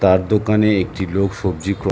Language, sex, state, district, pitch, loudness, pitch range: Bengali, male, West Bengal, North 24 Parganas, 100 Hz, -18 LUFS, 95-105 Hz